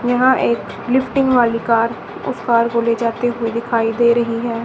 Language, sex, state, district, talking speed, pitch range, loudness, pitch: Hindi, female, Haryana, Charkhi Dadri, 195 wpm, 230-240 Hz, -17 LUFS, 235 Hz